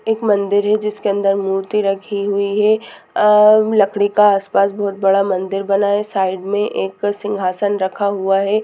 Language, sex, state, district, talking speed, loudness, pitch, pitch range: Hindi, female, Jharkhand, Jamtara, 195 wpm, -16 LUFS, 200 Hz, 195-210 Hz